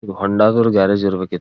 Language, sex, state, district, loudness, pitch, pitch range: Kannada, male, Karnataka, Dharwad, -15 LUFS, 100 Hz, 95-105 Hz